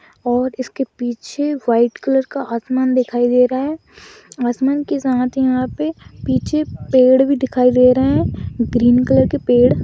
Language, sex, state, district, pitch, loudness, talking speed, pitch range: Magahi, female, Bihar, Gaya, 255 Hz, -16 LUFS, 170 wpm, 245-265 Hz